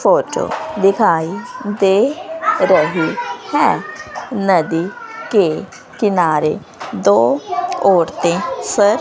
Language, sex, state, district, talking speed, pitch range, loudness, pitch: Hindi, female, Haryana, Rohtak, 75 wpm, 190-310 Hz, -16 LUFS, 205 Hz